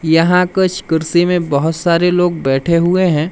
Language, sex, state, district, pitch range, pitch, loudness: Hindi, male, Madhya Pradesh, Umaria, 160-180 Hz, 170 Hz, -14 LUFS